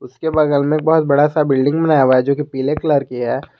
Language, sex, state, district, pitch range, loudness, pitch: Hindi, male, Jharkhand, Garhwa, 135-155 Hz, -16 LUFS, 145 Hz